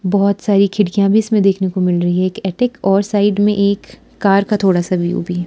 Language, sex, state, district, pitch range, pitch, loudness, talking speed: Hindi, female, Himachal Pradesh, Shimla, 185-205 Hz, 200 Hz, -15 LUFS, 220 wpm